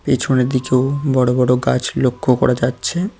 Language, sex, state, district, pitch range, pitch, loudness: Bengali, male, West Bengal, Cooch Behar, 125-135 Hz, 130 Hz, -17 LUFS